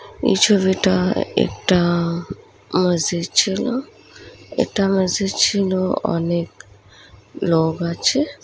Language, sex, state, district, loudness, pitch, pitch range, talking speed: Bengali, female, West Bengal, Dakshin Dinajpur, -19 LUFS, 185 Hz, 170-195 Hz, 80 wpm